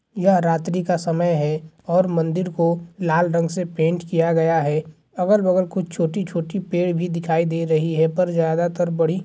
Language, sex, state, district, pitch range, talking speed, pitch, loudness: Hindi, male, Bihar, Gaya, 165-180 Hz, 180 wpm, 170 Hz, -21 LUFS